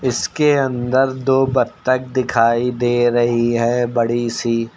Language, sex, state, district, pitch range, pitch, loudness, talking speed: Hindi, male, Uttar Pradesh, Lucknow, 120-130 Hz, 120 Hz, -17 LUFS, 125 wpm